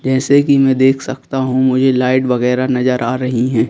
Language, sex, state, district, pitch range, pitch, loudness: Hindi, male, Madhya Pradesh, Bhopal, 125-130 Hz, 130 Hz, -14 LUFS